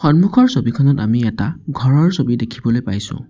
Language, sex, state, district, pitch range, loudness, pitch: Assamese, male, Assam, Sonitpur, 115-150 Hz, -16 LUFS, 135 Hz